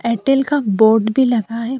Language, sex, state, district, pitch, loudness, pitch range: Hindi, female, Uttar Pradesh, Jyotiba Phule Nagar, 235 Hz, -15 LUFS, 220-265 Hz